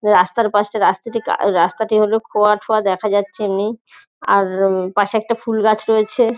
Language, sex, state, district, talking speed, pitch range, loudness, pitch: Bengali, female, West Bengal, North 24 Parganas, 170 wpm, 200-225 Hz, -17 LUFS, 215 Hz